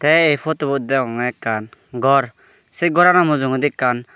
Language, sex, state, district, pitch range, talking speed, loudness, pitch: Chakma, male, Tripura, Unakoti, 125-155 Hz, 145 wpm, -17 LUFS, 135 Hz